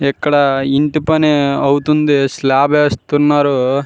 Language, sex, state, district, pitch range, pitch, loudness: Telugu, male, Andhra Pradesh, Srikakulam, 140-150 Hz, 145 Hz, -13 LUFS